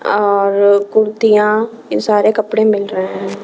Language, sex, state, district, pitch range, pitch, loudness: Hindi, female, Chhattisgarh, Raipur, 200-220 Hz, 210 Hz, -13 LUFS